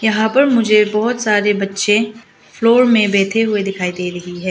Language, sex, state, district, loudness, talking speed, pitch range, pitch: Hindi, female, Arunachal Pradesh, Lower Dibang Valley, -15 LUFS, 185 wpm, 195-225 Hz, 210 Hz